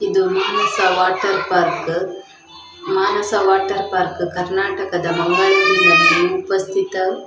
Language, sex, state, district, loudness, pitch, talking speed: Kannada, female, Karnataka, Dakshina Kannada, -16 LUFS, 195 Hz, 75 wpm